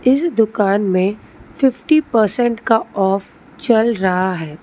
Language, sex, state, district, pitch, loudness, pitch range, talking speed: Hindi, female, Telangana, Hyderabad, 220 Hz, -16 LUFS, 195-255 Hz, 130 wpm